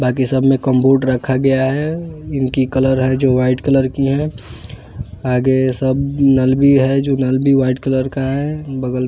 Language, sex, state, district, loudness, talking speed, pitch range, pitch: Hindi, male, Bihar, West Champaran, -15 LUFS, 185 wpm, 130-135 Hz, 130 Hz